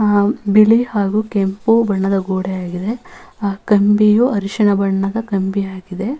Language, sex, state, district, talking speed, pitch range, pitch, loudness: Kannada, female, Karnataka, Bellary, 105 wpm, 195-220 Hz, 205 Hz, -16 LUFS